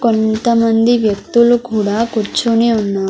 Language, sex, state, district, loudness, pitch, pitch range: Telugu, female, Andhra Pradesh, Sri Satya Sai, -14 LUFS, 225 Hz, 215-235 Hz